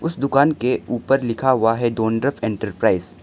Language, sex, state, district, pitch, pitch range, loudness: Hindi, male, Arunachal Pradesh, Lower Dibang Valley, 120 Hz, 110-135 Hz, -19 LUFS